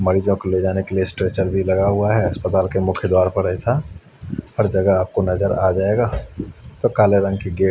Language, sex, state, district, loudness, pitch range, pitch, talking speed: Hindi, male, Haryana, Charkhi Dadri, -19 LUFS, 95-100 Hz, 95 Hz, 215 wpm